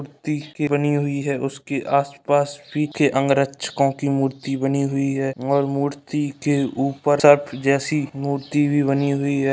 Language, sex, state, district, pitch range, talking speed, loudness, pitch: Hindi, male, Bihar, Purnia, 135-145 Hz, 155 wpm, -21 LUFS, 140 Hz